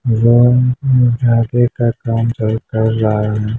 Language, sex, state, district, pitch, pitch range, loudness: Hindi, male, Bihar, Muzaffarpur, 115 Hz, 110-120 Hz, -14 LUFS